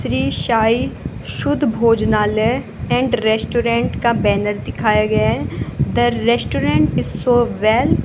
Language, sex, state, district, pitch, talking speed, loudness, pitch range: Hindi, female, Haryana, Rohtak, 225 Hz, 125 wpm, -17 LUFS, 215-240 Hz